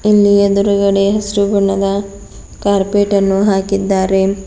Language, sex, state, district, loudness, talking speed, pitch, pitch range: Kannada, female, Karnataka, Bidar, -13 LUFS, 95 wpm, 200 Hz, 195-200 Hz